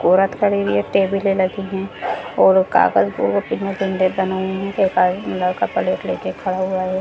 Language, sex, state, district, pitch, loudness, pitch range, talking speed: Hindi, female, Bihar, Gaya, 190 Hz, -19 LUFS, 185-195 Hz, 145 wpm